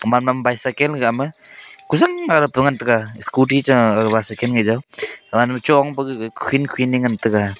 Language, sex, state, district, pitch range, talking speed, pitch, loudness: Wancho, male, Arunachal Pradesh, Longding, 115-145 Hz, 140 wpm, 130 Hz, -18 LUFS